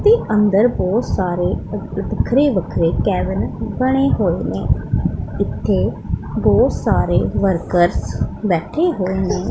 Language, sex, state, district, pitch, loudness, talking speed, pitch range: Punjabi, female, Punjab, Pathankot, 210 Hz, -18 LUFS, 105 wpm, 185-275 Hz